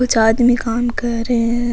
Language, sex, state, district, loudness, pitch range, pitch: Rajasthani, female, Rajasthan, Nagaur, -16 LUFS, 230-240 Hz, 240 Hz